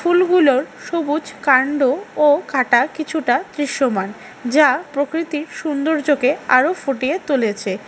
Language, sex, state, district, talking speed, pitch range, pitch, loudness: Bengali, female, West Bengal, Alipurduar, 100 wpm, 260-310 Hz, 290 Hz, -18 LUFS